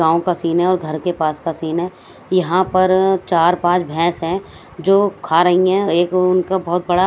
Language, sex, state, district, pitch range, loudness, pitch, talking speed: Hindi, female, Bihar, West Champaran, 170-185 Hz, -17 LUFS, 180 Hz, 210 wpm